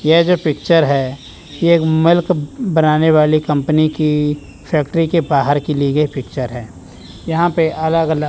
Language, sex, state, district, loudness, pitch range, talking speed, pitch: Hindi, male, Chandigarh, Chandigarh, -15 LUFS, 140-165 Hz, 165 wpm, 155 Hz